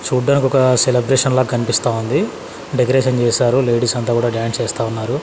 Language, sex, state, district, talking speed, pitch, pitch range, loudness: Telugu, male, Andhra Pradesh, Sri Satya Sai, 160 wpm, 125 Hz, 120-130 Hz, -16 LUFS